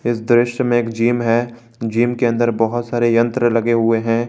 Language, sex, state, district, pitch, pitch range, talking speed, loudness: Hindi, male, Jharkhand, Garhwa, 120 Hz, 115-120 Hz, 210 wpm, -17 LUFS